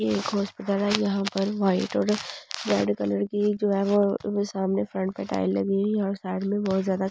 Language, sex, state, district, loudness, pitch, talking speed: Hindi, female, Delhi, New Delhi, -26 LUFS, 195 Hz, 235 wpm